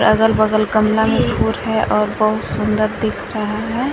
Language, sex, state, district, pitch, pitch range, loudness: Hindi, female, Jharkhand, Garhwa, 215 Hz, 215-220 Hz, -17 LUFS